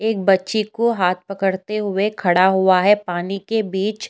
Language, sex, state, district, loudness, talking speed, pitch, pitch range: Hindi, female, Uttar Pradesh, Jyotiba Phule Nagar, -18 LUFS, 175 wpm, 195 Hz, 190-215 Hz